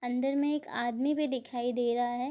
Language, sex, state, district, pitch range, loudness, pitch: Hindi, female, Bihar, Madhepura, 245-280 Hz, -31 LUFS, 250 Hz